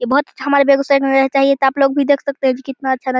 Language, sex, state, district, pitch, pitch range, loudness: Hindi, male, Bihar, Begusarai, 275 Hz, 270-280 Hz, -15 LUFS